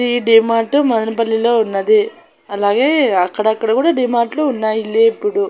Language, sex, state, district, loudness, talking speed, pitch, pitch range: Telugu, female, Andhra Pradesh, Annamaya, -15 LUFS, 140 wpm, 230 Hz, 220-290 Hz